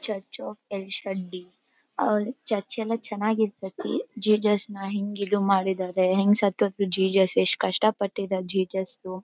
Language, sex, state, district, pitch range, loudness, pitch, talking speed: Kannada, female, Karnataka, Bellary, 190-215 Hz, -25 LUFS, 200 Hz, 110 wpm